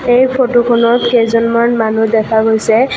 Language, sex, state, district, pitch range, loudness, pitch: Assamese, female, Assam, Kamrup Metropolitan, 225-245 Hz, -11 LUFS, 235 Hz